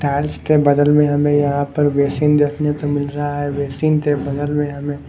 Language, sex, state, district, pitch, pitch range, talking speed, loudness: Hindi, female, Himachal Pradesh, Shimla, 145 Hz, 145-150 Hz, 210 wpm, -17 LUFS